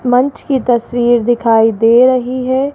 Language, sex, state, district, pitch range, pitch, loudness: Hindi, female, Rajasthan, Jaipur, 240-255 Hz, 245 Hz, -12 LUFS